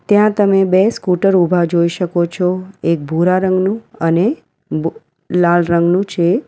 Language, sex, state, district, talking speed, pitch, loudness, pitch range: Gujarati, female, Gujarat, Valsad, 150 wpm, 180 Hz, -15 LUFS, 170-195 Hz